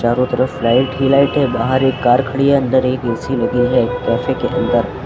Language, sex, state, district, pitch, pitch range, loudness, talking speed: Hindi, female, Uttar Pradesh, Lucknow, 130 Hz, 125-135 Hz, -15 LUFS, 225 wpm